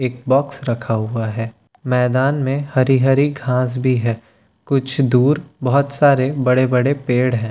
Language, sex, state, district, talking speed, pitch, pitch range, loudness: Hindi, male, Bihar, Katihar, 160 wpm, 130 Hz, 125-140 Hz, -17 LUFS